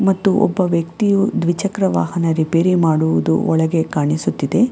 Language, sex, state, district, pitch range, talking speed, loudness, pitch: Kannada, female, Karnataka, Bangalore, 160-195 Hz, 115 wpm, -17 LUFS, 170 Hz